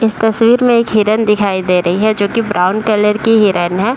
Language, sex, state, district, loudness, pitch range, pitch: Hindi, female, Uttar Pradesh, Deoria, -12 LUFS, 200-225 Hz, 215 Hz